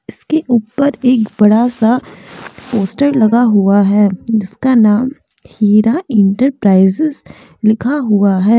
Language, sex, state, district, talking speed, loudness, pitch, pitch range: Hindi, female, Jharkhand, Deoghar, 120 wpm, -12 LUFS, 225 Hz, 205-260 Hz